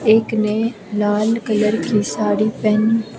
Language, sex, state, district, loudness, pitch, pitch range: Hindi, female, Himachal Pradesh, Shimla, -18 LUFS, 215 Hz, 210-225 Hz